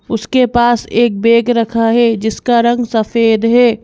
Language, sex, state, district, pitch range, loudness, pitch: Hindi, female, Madhya Pradesh, Bhopal, 225-240 Hz, -12 LUFS, 235 Hz